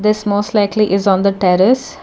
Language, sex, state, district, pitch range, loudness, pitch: English, female, Karnataka, Bangalore, 195-210 Hz, -14 LUFS, 205 Hz